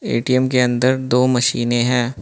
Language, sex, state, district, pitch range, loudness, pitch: Hindi, male, Manipur, Imphal West, 120-130 Hz, -17 LUFS, 125 Hz